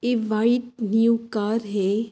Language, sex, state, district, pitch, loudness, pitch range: Hindi, female, Uttar Pradesh, Hamirpur, 225 Hz, -23 LUFS, 215-230 Hz